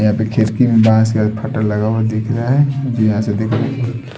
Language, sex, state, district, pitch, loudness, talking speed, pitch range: Hindi, male, Odisha, Sambalpur, 110 Hz, -15 LUFS, 185 wpm, 110-120 Hz